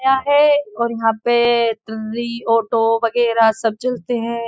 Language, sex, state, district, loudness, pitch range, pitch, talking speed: Hindi, female, Uttar Pradesh, Budaun, -17 LUFS, 225-240 Hz, 235 Hz, 135 wpm